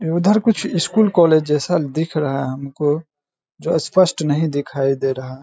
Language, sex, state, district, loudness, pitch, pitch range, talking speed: Hindi, male, Bihar, Saharsa, -18 LUFS, 155 Hz, 145-175 Hz, 175 wpm